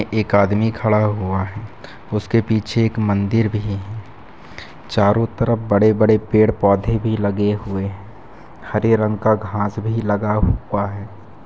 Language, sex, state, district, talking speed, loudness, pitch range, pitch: Hindi, male, Chhattisgarh, Bilaspur, 145 wpm, -18 LUFS, 100-110 Hz, 105 Hz